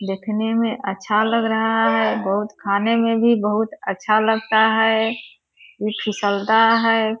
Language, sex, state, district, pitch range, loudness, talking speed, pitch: Hindi, female, Bihar, Purnia, 210-225 Hz, -19 LUFS, 140 wpm, 220 Hz